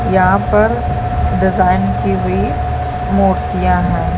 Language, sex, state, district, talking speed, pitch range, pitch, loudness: Hindi, female, Chhattisgarh, Balrampur, 115 wpm, 65-90 Hz, 80 Hz, -14 LUFS